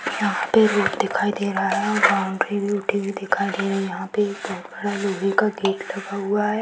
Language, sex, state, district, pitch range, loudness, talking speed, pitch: Hindi, female, Bihar, Jahanabad, 195-205 Hz, -22 LUFS, 235 wpm, 200 Hz